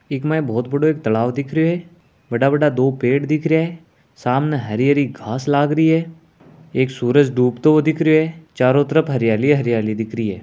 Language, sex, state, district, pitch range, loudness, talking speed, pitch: Hindi, male, Rajasthan, Nagaur, 125-155 Hz, -18 LUFS, 215 wpm, 140 Hz